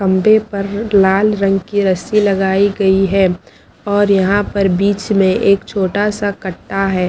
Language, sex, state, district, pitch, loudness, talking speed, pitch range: Hindi, female, Haryana, Charkhi Dadri, 200 Hz, -14 LUFS, 160 wpm, 190-205 Hz